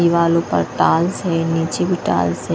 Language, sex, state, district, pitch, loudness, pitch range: Hindi, female, Punjab, Kapurthala, 170 Hz, -18 LUFS, 160-170 Hz